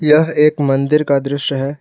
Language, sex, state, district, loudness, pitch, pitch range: Hindi, male, Jharkhand, Palamu, -15 LUFS, 145 Hz, 140-150 Hz